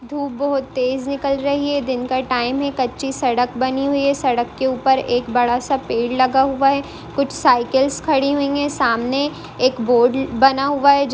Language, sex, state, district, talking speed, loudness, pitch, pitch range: Hindi, female, West Bengal, Purulia, 190 wpm, -18 LUFS, 265 Hz, 255-280 Hz